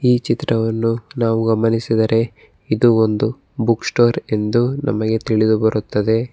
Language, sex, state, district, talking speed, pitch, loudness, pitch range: Kannada, male, Karnataka, Bangalore, 115 wpm, 115 Hz, -18 LUFS, 110-120 Hz